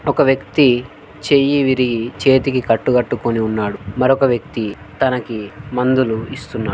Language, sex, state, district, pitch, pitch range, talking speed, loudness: Telugu, male, Telangana, Karimnagar, 125 Hz, 110-135 Hz, 105 wpm, -17 LUFS